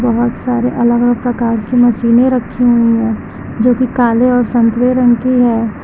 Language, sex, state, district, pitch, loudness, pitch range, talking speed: Hindi, female, Uttar Pradesh, Lucknow, 240 Hz, -12 LUFS, 235-245 Hz, 175 wpm